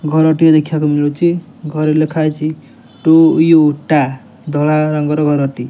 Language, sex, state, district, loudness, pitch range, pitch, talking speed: Odia, male, Odisha, Nuapada, -13 LUFS, 150-160 Hz, 155 Hz, 160 wpm